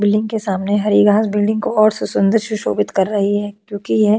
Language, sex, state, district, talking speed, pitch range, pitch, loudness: Hindi, female, Uttar Pradesh, Jyotiba Phule Nagar, 230 wpm, 205-215 Hz, 205 Hz, -16 LUFS